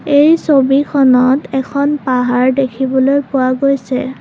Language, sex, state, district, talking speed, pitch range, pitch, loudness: Assamese, female, Assam, Kamrup Metropolitan, 100 wpm, 255-280 Hz, 270 Hz, -13 LUFS